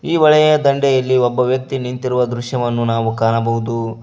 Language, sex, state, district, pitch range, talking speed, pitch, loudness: Kannada, male, Karnataka, Koppal, 115-135 Hz, 135 wpm, 125 Hz, -16 LUFS